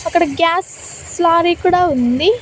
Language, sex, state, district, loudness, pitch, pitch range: Telugu, female, Andhra Pradesh, Annamaya, -14 LUFS, 340 Hz, 335-360 Hz